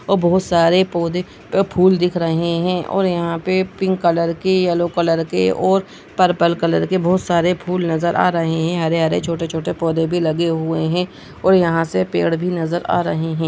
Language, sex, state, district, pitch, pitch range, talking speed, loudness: Hindi, male, Bihar, Jamui, 170 Hz, 165-180 Hz, 200 wpm, -18 LUFS